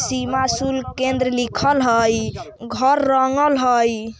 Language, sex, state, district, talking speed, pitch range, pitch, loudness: Bajjika, female, Bihar, Vaishali, 115 wpm, 235-265 Hz, 255 Hz, -18 LUFS